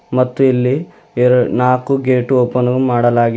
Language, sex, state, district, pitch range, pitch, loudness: Kannada, male, Karnataka, Bidar, 125-130 Hz, 125 Hz, -14 LUFS